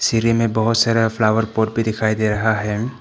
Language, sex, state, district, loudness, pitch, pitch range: Hindi, male, Arunachal Pradesh, Papum Pare, -18 LUFS, 110 Hz, 110-115 Hz